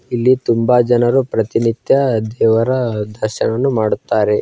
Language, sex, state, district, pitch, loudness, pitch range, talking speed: Kannada, male, Karnataka, Bijapur, 115 Hz, -15 LUFS, 110-125 Hz, 95 wpm